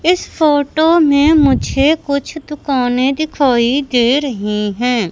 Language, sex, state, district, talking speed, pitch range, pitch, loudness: Hindi, male, Madhya Pradesh, Katni, 115 wpm, 250-310 Hz, 280 Hz, -14 LUFS